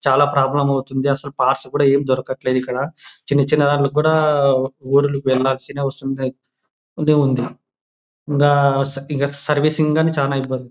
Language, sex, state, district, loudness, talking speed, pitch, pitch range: Telugu, male, Andhra Pradesh, Anantapur, -18 LUFS, 125 wpm, 140 Hz, 130-145 Hz